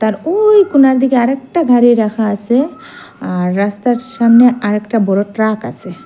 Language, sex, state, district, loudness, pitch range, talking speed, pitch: Bengali, female, Assam, Hailakandi, -12 LUFS, 215-265 Hz, 160 wpm, 240 Hz